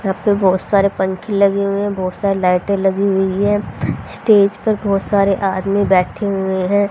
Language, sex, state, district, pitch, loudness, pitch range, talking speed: Hindi, female, Haryana, Rohtak, 195 Hz, -16 LUFS, 190-200 Hz, 190 wpm